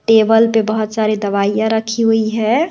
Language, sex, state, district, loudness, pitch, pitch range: Hindi, female, Bihar, West Champaran, -15 LUFS, 220 Hz, 215-225 Hz